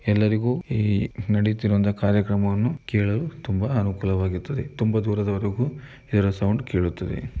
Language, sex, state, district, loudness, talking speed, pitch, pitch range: Kannada, male, Karnataka, Mysore, -24 LUFS, 90 wpm, 105 Hz, 100-115 Hz